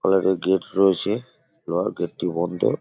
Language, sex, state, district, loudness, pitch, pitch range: Bengali, male, West Bengal, Paschim Medinipur, -23 LUFS, 95 Hz, 90-95 Hz